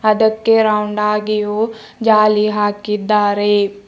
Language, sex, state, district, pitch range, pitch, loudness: Kannada, female, Karnataka, Bidar, 210-215 Hz, 210 Hz, -15 LUFS